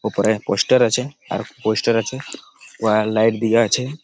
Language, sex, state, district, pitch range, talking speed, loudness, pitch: Bengali, male, West Bengal, Malda, 110-125 Hz, 150 wpm, -19 LUFS, 115 Hz